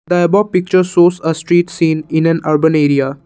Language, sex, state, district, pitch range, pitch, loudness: English, male, Assam, Kamrup Metropolitan, 155-180 Hz, 165 Hz, -13 LUFS